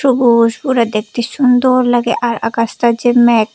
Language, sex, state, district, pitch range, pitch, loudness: Bengali, female, Tripura, West Tripura, 230-250 Hz, 240 Hz, -13 LUFS